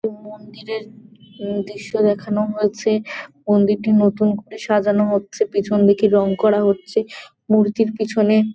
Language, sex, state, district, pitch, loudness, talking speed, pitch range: Bengali, female, West Bengal, Jalpaiguri, 210 Hz, -18 LUFS, 125 wpm, 205-215 Hz